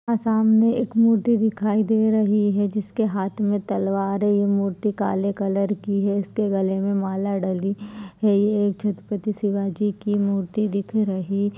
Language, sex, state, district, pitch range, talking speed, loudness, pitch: Hindi, female, Chhattisgarh, Balrampur, 195-215 Hz, 165 wpm, -22 LUFS, 205 Hz